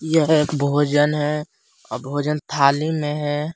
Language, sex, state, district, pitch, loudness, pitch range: Hindi, male, Jharkhand, Palamu, 150 Hz, -20 LUFS, 145-150 Hz